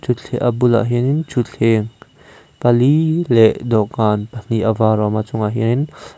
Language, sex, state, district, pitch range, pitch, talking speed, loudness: Mizo, male, Mizoram, Aizawl, 110-125 Hz, 115 Hz, 145 wpm, -16 LUFS